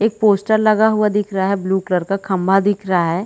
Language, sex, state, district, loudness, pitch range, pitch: Hindi, female, Chhattisgarh, Bilaspur, -17 LUFS, 190-215 Hz, 195 Hz